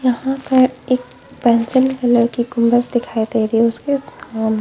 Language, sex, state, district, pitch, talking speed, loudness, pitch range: Hindi, female, Bihar, Patna, 240 Hz, 170 wpm, -17 LUFS, 230-255 Hz